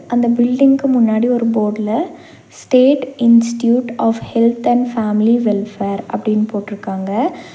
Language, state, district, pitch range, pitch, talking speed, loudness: Tamil, Tamil Nadu, Nilgiris, 215-245 Hz, 235 Hz, 110 wpm, -15 LUFS